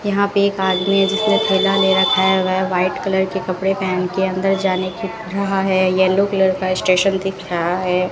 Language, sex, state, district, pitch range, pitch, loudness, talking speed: Hindi, female, Rajasthan, Bikaner, 185-195 Hz, 190 Hz, -17 LUFS, 215 wpm